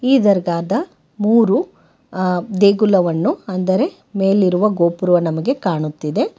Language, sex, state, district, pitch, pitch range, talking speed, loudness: Kannada, female, Karnataka, Bangalore, 190 Hz, 175-215 Hz, 95 wpm, -17 LUFS